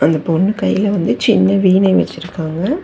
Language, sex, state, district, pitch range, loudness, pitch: Tamil, female, Tamil Nadu, Chennai, 165-200 Hz, -14 LUFS, 190 Hz